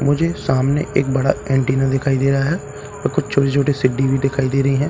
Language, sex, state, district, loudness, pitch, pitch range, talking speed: Hindi, male, Bihar, Katihar, -18 LUFS, 135 Hz, 135-140 Hz, 235 wpm